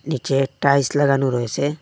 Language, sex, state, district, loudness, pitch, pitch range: Bengali, male, Assam, Hailakandi, -19 LUFS, 140 Hz, 135-145 Hz